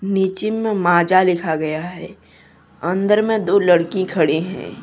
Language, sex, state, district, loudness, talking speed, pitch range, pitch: Hindi, male, Jharkhand, Deoghar, -18 LUFS, 150 wpm, 165-195 Hz, 180 Hz